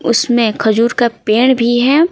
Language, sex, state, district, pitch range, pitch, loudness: Hindi, female, Bihar, Patna, 230-255 Hz, 235 Hz, -12 LUFS